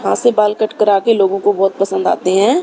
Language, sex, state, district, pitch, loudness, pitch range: Hindi, female, Haryana, Rohtak, 205 Hz, -14 LUFS, 195-215 Hz